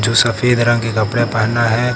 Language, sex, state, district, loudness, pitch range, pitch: Hindi, male, Uttar Pradesh, Lucknow, -15 LUFS, 115-120 Hz, 115 Hz